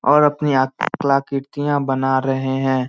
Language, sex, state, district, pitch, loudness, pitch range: Hindi, male, Bihar, Samastipur, 135 Hz, -19 LUFS, 130-145 Hz